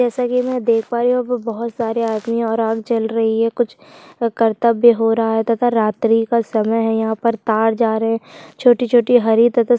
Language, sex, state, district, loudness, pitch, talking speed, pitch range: Hindi, female, Chhattisgarh, Sukma, -17 LUFS, 230 Hz, 200 wpm, 225-240 Hz